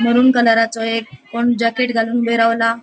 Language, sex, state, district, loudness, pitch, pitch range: Konkani, female, Goa, North and South Goa, -16 LUFS, 230 Hz, 230-240 Hz